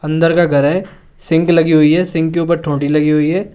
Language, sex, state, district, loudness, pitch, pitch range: Hindi, male, Uttar Pradesh, Shamli, -13 LUFS, 165 Hz, 150-170 Hz